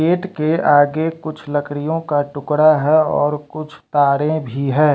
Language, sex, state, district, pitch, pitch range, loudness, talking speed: Hindi, male, Bihar, West Champaran, 150 Hz, 145-155 Hz, -17 LUFS, 160 wpm